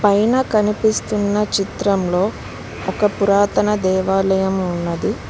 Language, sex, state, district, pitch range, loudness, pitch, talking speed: Telugu, female, Telangana, Mahabubabad, 190-210 Hz, -18 LUFS, 200 Hz, 80 wpm